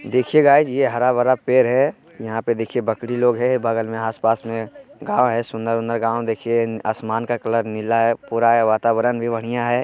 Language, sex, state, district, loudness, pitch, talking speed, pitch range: Hindi, male, Bihar, Jamui, -19 LUFS, 115 Hz, 200 wpm, 115-125 Hz